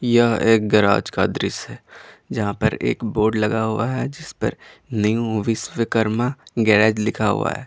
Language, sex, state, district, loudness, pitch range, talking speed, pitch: Hindi, male, Jharkhand, Garhwa, -20 LUFS, 110-115 Hz, 165 wpm, 110 Hz